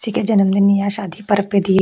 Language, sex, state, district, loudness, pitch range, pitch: Hindi, female, Chhattisgarh, Korba, -16 LUFS, 195-205 Hz, 200 Hz